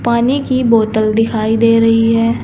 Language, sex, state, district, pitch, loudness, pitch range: Hindi, female, Uttar Pradesh, Saharanpur, 230 Hz, -13 LUFS, 225-235 Hz